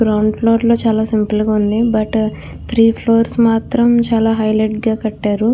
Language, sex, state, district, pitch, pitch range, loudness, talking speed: Telugu, female, Andhra Pradesh, Krishna, 225 Hz, 215-230 Hz, -15 LUFS, 160 wpm